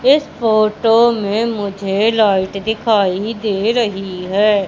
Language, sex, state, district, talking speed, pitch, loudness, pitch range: Hindi, female, Madhya Pradesh, Umaria, 115 wpm, 215 Hz, -16 LUFS, 195-225 Hz